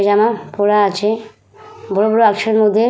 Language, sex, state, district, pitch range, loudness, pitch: Bengali, female, West Bengal, Purulia, 205-225 Hz, -15 LUFS, 215 Hz